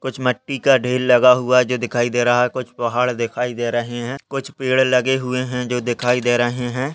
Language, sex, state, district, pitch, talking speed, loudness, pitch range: Hindi, male, Chhattisgarh, Balrampur, 125 Hz, 240 wpm, -18 LUFS, 120-130 Hz